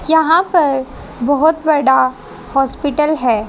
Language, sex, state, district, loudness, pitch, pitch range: Hindi, female, Haryana, Rohtak, -14 LUFS, 285 Hz, 265-315 Hz